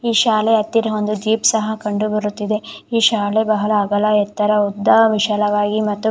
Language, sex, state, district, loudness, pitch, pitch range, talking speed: Kannada, female, Karnataka, Shimoga, -17 LUFS, 215 Hz, 210-220 Hz, 175 wpm